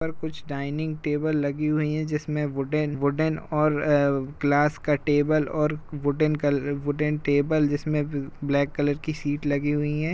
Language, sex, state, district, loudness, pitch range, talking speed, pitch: Hindi, male, Uttar Pradesh, Jalaun, -25 LUFS, 145-155 Hz, 140 wpm, 150 Hz